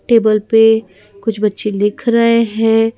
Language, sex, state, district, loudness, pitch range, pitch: Hindi, female, Madhya Pradesh, Bhopal, -14 LUFS, 210-230 Hz, 225 Hz